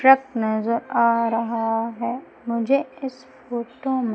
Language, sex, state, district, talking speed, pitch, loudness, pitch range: Hindi, female, Madhya Pradesh, Umaria, 130 wpm, 235 Hz, -23 LUFS, 230-260 Hz